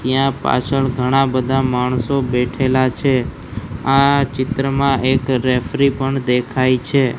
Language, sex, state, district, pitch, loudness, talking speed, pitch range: Gujarati, male, Gujarat, Gandhinagar, 130 Hz, -17 LUFS, 115 wpm, 125-135 Hz